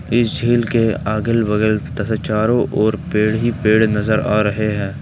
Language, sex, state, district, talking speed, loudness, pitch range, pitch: Hindi, male, Jharkhand, Ranchi, 180 wpm, -17 LUFS, 105-115 Hz, 110 Hz